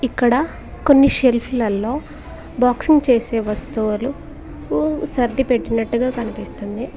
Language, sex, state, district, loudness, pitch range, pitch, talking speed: Telugu, female, Telangana, Mahabubabad, -18 LUFS, 220-260 Hz, 240 Hz, 75 wpm